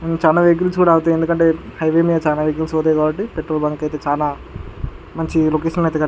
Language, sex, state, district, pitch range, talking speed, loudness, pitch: Telugu, male, Andhra Pradesh, Guntur, 155-165 Hz, 195 wpm, -17 LUFS, 160 Hz